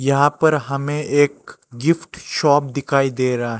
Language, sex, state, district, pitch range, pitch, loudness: Hindi, male, Chhattisgarh, Raipur, 135-145 Hz, 140 Hz, -19 LUFS